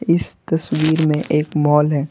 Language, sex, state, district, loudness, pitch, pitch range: Hindi, male, Bihar, Patna, -17 LUFS, 155 Hz, 150-160 Hz